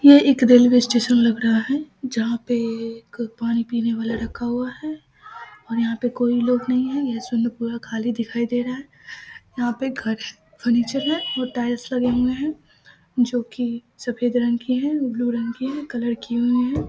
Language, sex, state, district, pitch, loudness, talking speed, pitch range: Hindi, female, Bihar, Samastipur, 245 Hz, -21 LUFS, 205 wpm, 235-255 Hz